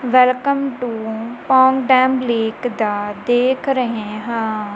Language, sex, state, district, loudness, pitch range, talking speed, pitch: Punjabi, female, Punjab, Kapurthala, -17 LUFS, 220-260 Hz, 115 wpm, 245 Hz